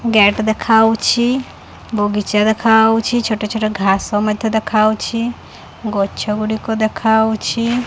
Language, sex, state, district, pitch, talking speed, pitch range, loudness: Odia, female, Odisha, Khordha, 220 Hz, 100 wpm, 210-225 Hz, -16 LUFS